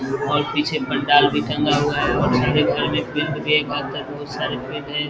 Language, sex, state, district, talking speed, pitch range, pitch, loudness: Hindi, male, Bihar, Vaishali, 105 wpm, 140-150 Hz, 145 Hz, -20 LUFS